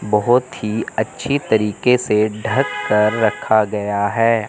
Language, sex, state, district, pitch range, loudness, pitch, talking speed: Hindi, male, Chandigarh, Chandigarh, 105-120 Hz, -18 LUFS, 110 Hz, 135 wpm